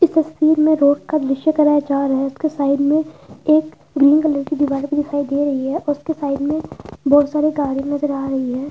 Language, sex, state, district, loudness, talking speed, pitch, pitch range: Hindi, female, Uttar Pradesh, Budaun, -18 LUFS, 225 wpm, 290 Hz, 280-305 Hz